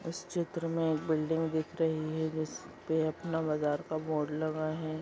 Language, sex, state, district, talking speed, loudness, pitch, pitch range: Hindi, female, Uttar Pradesh, Deoria, 190 wpm, -33 LUFS, 160 Hz, 155-165 Hz